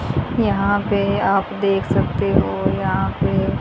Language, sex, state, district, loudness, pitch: Hindi, female, Haryana, Jhajjar, -19 LUFS, 195 Hz